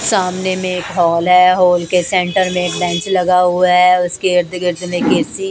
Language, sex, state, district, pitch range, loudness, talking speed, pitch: Hindi, female, Odisha, Malkangiri, 180-185 Hz, -14 LUFS, 215 wpm, 180 Hz